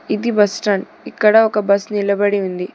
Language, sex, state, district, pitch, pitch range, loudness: Telugu, female, Telangana, Hyderabad, 205 Hz, 200-210 Hz, -16 LUFS